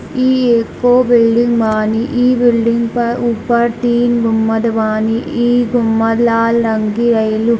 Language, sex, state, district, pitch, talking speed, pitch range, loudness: Hindi, male, Bihar, Darbhanga, 235 Hz, 160 wpm, 225-240 Hz, -13 LUFS